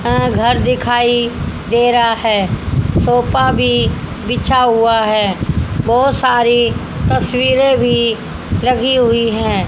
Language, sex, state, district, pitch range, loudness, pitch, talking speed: Hindi, female, Haryana, Rohtak, 195-240 Hz, -14 LUFS, 230 Hz, 110 wpm